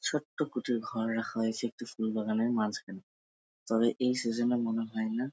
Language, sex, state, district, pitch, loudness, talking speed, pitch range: Bengali, male, West Bengal, Jalpaiguri, 115 Hz, -32 LUFS, 180 wpm, 110-120 Hz